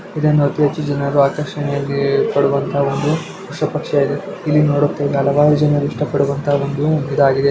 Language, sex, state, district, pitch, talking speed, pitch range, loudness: Kannada, male, Karnataka, Shimoga, 145 Hz, 135 wpm, 140-150 Hz, -17 LUFS